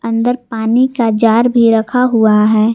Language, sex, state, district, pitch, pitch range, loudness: Hindi, female, Jharkhand, Garhwa, 230 Hz, 225-245 Hz, -12 LUFS